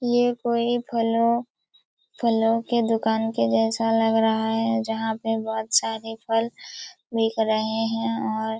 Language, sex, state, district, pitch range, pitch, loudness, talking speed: Hindi, female, Chhattisgarh, Raigarh, 225-230 Hz, 225 Hz, -23 LUFS, 140 wpm